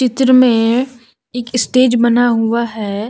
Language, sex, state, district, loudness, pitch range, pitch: Hindi, female, Jharkhand, Deoghar, -13 LUFS, 230-255 Hz, 240 Hz